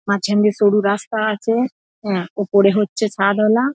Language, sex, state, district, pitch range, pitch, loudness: Bengali, female, West Bengal, North 24 Parganas, 200-215 Hz, 205 Hz, -17 LUFS